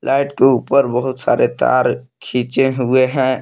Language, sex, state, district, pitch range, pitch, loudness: Hindi, male, Jharkhand, Palamu, 125-135 Hz, 130 Hz, -16 LUFS